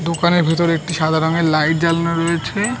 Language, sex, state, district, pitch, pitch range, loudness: Bengali, male, West Bengal, North 24 Parganas, 170 Hz, 160-170 Hz, -17 LUFS